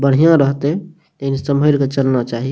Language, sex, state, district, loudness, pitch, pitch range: Maithili, male, Bihar, Madhepura, -16 LUFS, 140 Hz, 135-150 Hz